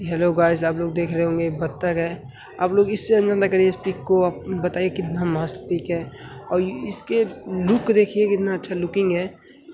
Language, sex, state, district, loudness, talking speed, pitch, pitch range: Hindi, male, Bihar, Saran, -21 LUFS, 180 wpm, 180 Hz, 170-195 Hz